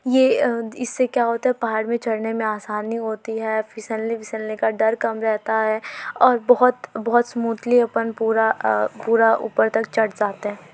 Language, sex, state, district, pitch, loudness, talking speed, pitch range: Hindi, female, Uttar Pradesh, Varanasi, 225 Hz, -21 LUFS, 185 wpm, 220-235 Hz